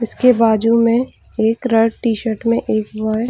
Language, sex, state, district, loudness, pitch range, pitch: Hindi, female, Jharkhand, Jamtara, -16 LUFS, 220-235 Hz, 230 Hz